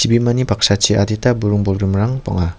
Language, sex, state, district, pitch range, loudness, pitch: Garo, male, Meghalaya, West Garo Hills, 100-120 Hz, -16 LUFS, 105 Hz